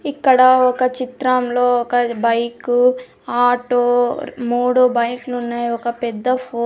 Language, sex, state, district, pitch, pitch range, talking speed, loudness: Telugu, female, Andhra Pradesh, Sri Satya Sai, 245 Hz, 240-255 Hz, 115 wpm, -17 LUFS